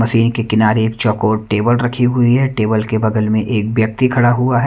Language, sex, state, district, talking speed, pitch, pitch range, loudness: Hindi, male, Haryana, Rohtak, 230 wpm, 110 Hz, 110-120 Hz, -15 LUFS